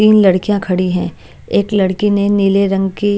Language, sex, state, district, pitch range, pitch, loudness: Hindi, female, Bihar, Kaimur, 190-205 Hz, 200 Hz, -14 LUFS